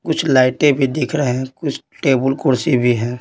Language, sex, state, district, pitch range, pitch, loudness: Hindi, male, Bihar, Patna, 125-145 Hz, 130 Hz, -17 LUFS